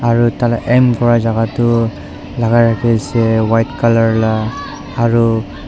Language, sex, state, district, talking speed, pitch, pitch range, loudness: Nagamese, male, Nagaland, Dimapur, 125 wpm, 115 Hz, 110-120 Hz, -14 LUFS